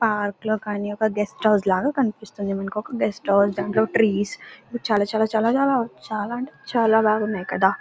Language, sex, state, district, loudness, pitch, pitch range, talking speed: Telugu, female, Karnataka, Bellary, -22 LUFS, 215 Hz, 205-225 Hz, 175 wpm